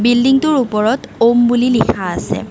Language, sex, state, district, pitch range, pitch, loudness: Assamese, female, Assam, Kamrup Metropolitan, 235-255 Hz, 240 Hz, -14 LUFS